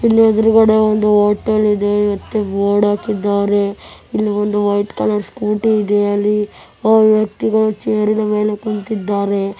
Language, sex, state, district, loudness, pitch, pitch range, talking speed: Kannada, male, Karnataka, Bellary, -15 LUFS, 210 Hz, 205-215 Hz, 120 wpm